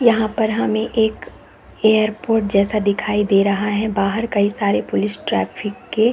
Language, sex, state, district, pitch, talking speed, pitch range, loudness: Hindi, female, Chhattisgarh, Bilaspur, 215 Hz, 155 wpm, 205-220 Hz, -18 LUFS